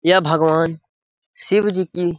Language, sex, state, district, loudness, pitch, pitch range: Hindi, male, Bihar, Lakhisarai, -18 LUFS, 175 Hz, 165-185 Hz